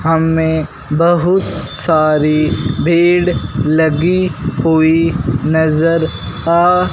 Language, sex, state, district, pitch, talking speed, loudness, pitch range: Hindi, male, Punjab, Fazilka, 160 Hz, 70 wpm, -13 LUFS, 155-170 Hz